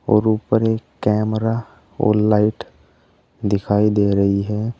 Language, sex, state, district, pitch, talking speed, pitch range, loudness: Hindi, male, Uttar Pradesh, Saharanpur, 105 Hz, 125 wpm, 105-110 Hz, -19 LUFS